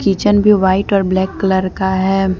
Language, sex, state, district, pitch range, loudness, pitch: Hindi, female, Jharkhand, Deoghar, 190-200 Hz, -14 LUFS, 190 Hz